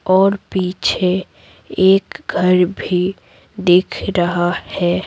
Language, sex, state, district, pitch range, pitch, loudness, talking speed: Hindi, female, Bihar, Patna, 180-190 Hz, 185 Hz, -16 LUFS, 95 wpm